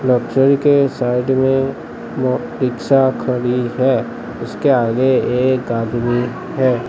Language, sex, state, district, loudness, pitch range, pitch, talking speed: Hindi, male, Gujarat, Gandhinagar, -16 LUFS, 125-135 Hz, 130 Hz, 105 wpm